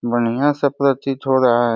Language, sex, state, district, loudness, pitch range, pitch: Hindi, male, Uttar Pradesh, Deoria, -18 LUFS, 120-140 Hz, 130 Hz